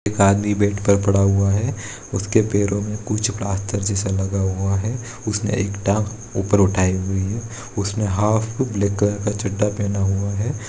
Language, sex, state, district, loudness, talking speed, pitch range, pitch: Hindi, male, Bihar, East Champaran, -21 LUFS, 180 wpm, 100-105 Hz, 100 Hz